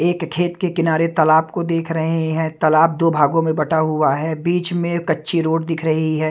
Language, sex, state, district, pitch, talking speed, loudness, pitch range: Hindi, male, Haryana, Jhajjar, 160 Hz, 220 wpm, -18 LUFS, 155-170 Hz